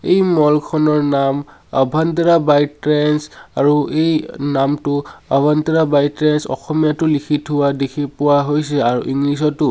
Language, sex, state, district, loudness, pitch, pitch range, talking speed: Assamese, male, Assam, Sonitpur, -16 LUFS, 150 Hz, 145-155 Hz, 135 wpm